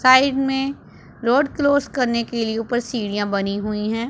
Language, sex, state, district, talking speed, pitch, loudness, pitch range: Hindi, female, Punjab, Pathankot, 175 wpm, 240 Hz, -21 LUFS, 220-270 Hz